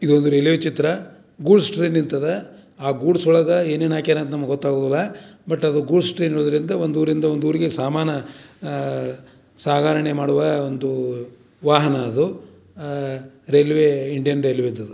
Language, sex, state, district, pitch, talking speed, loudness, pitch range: Kannada, male, Karnataka, Dharwad, 150 Hz, 140 wpm, -20 LUFS, 140-160 Hz